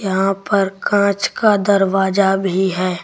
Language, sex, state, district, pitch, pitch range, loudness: Hindi, female, Delhi, New Delhi, 195 Hz, 190-200 Hz, -16 LUFS